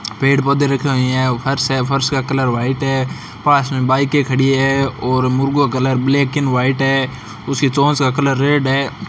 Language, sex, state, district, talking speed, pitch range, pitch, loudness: Hindi, male, Rajasthan, Bikaner, 190 wpm, 130-140 Hz, 135 Hz, -16 LUFS